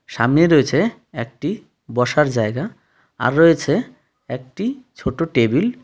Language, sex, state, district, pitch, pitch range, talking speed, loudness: Bengali, male, West Bengal, Darjeeling, 150 Hz, 125-170 Hz, 115 wpm, -18 LUFS